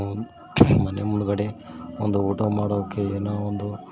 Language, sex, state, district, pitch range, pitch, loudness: Kannada, male, Karnataka, Koppal, 100-105 Hz, 100 Hz, -24 LUFS